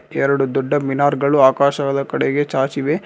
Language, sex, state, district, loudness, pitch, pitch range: Kannada, male, Karnataka, Bangalore, -17 LUFS, 140 Hz, 135-145 Hz